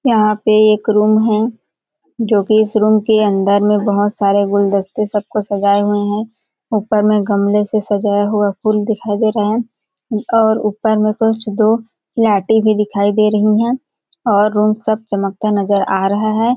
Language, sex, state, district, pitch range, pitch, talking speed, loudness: Hindi, female, Chhattisgarh, Balrampur, 205-220 Hz, 215 Hz, 175 wpm, -15 LUFS